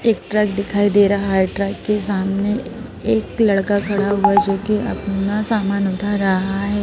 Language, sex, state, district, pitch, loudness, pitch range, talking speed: Hindi, female, Madhya Pradesh, Bhopal, 205 Hz, -18 LUFS, 195-210 Hz, 185 wpm